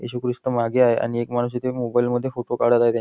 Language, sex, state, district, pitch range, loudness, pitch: Marathi, male, Maharashtra, Nagpur, 120-125 Hz, -22 LUFS, 120 Hz